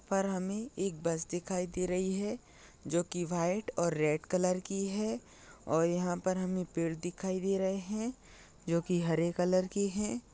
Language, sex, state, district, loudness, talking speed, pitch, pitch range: Hindi, male, Maharashtra, Dhule, -34 LUFS, 175 wpm, 185 Hz, 175-195 Hz